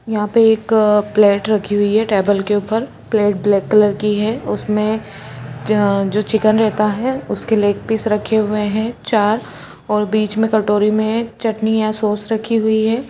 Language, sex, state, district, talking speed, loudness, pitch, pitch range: Hindi, female, Chhattisgarh, Kabirdham, 185 wpm, -16 LUFS, 215 Hz, 205-220 Hz